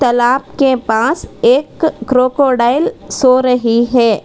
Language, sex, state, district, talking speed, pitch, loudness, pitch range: Hindi, female, Karnataka, Bangalore, 115 wpm, 255 Hz, -13 LUFS, 240-275 Hz